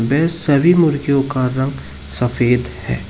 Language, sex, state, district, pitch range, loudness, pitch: Hindi, male, Uttar Pradesh, Shamli, 120-145 Hz, -15 LUFS, 130 Hz